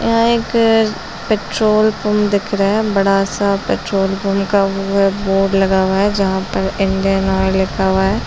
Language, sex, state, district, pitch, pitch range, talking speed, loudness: Hindi, female, Chhattisgarh, Balrampur, 195 Hz, 195-215 Hz, 180 wpm, -15 LUFS